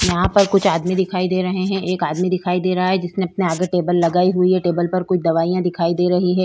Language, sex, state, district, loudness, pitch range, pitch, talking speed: Hindi, female, Goa, North and South Goa, -18 LUFS, 175-185 Hz, 180 Hz, 270 wpm